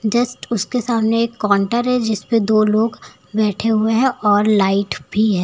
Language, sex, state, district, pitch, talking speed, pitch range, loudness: Hindi, female, Uttar Pradesh, Lucknow, 220 Hz, 185 wpm, 210-230 Hz, -17 LUFS